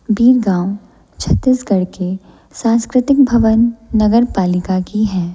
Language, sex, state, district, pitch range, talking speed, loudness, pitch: Hindi, female, Chhattisgarh, Raipur, 185-235 Hz, 110 wpm, -14 LUFS, 215 Hz